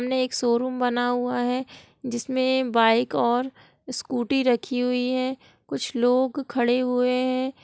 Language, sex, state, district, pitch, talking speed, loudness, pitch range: Hindi, female, Bihar, Gopalganj, 250 Hz, 140 wpm, -24 LUFS, 245-260 Hz